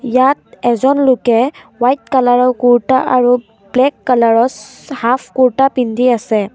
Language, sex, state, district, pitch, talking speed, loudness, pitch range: Assamese, female, Assam, Kamrup Metropolitan, 250 Hz, 130 wpm, -13 LUFS, 235-260 Hz